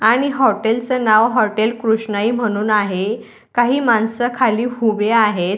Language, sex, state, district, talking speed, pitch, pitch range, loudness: Marathi, female, Maharashtra, Dhule, 140 wpm, 225 Hz, 215-240 Hz, -16 LUFS